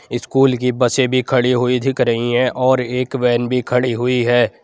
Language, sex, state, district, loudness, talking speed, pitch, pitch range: Hindi, male, Uttar Pradesh, Jyotiba Phule Nagar, -16 LUFS, 205 wpm, 125 Hz, 125-130 Hz